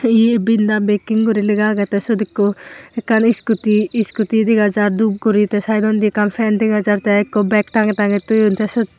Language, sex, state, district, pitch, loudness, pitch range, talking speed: Chakma, female, Tripura, Unakoti, 215 Hz, -16 LUFS, 210-220 Hz, 205 wpm